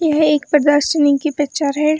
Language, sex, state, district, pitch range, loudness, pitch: Hindi, female, Chhattisgarh, Bilaspur, 290-305 Hz, -15 LUFS, 295 Hz